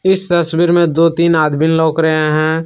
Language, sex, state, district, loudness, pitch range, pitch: Hindi, male, Jharkhand, Palamu, -13 LUFS, 160-170 Hz, 165 Hz